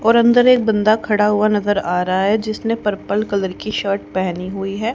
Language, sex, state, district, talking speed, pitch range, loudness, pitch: Hindi, female, Haryana, Rohtak, 220 wpm, 195-220 Hz, -17 LUFS, 210 Hz